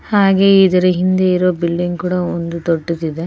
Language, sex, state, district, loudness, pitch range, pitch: Kannada, female, Karnataka, Bellary, -15 LUFS, 170-185 Hz, 180 Hz